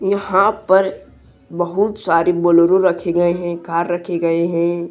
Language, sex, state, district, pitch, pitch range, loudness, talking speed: Hindi, male, Jharkhand, Deoghar, 175 Hz, 170-190 Hz, -16 LUFS, 145 wpm